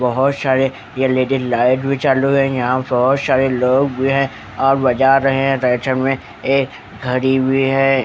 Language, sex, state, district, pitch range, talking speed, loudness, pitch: Hindi, male, Haryana, Charkhi Dadri, 125-135 Hz, 180 wpm, -16 LUFS, 130 Hz